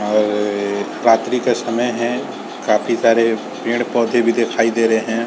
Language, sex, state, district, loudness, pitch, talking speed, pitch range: Hindi, male, Uttar Pradesh, Varanasi, -17 LUFS, 115 Hz, 150 wpm, 110-115 Hz